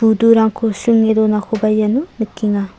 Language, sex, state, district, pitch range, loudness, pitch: Garo, female, Meghalaya, South Garo Hills, 215-225 Hz, -15 LUFS, 220 Hz